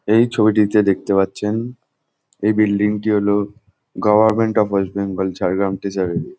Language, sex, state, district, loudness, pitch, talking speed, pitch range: Bengali, male, West Bengal, Jhargram, -18 LUFS, 105 Hz, 140 wpm, 100-110 Hz